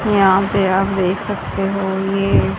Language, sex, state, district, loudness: Hindi, female, Haryana, Charkhi Dadri, -17 LUFS